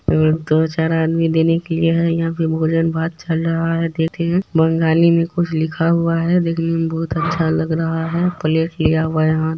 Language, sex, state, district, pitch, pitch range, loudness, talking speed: Maithili, female, Bihar, Supaul, 165 Hz, 160-165 Hz, -17 LUFS, 240 wpm